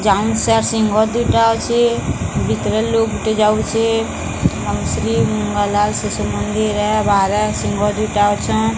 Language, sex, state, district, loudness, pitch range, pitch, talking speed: Odia, female, Odisha, Sambalpur, -17 LUFS, 205-220 Hz, 210 Hz, 125 wpm